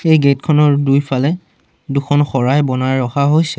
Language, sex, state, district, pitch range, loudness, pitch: Assamese, male, Assam, Sonitpur, 135-150 Hz, -14 LUFS, 140 Hz